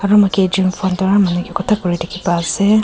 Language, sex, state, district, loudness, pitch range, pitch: Nagamese, female, Nagaland, Kohima, -16 LUFS, 175-200 Hz, 190 Hz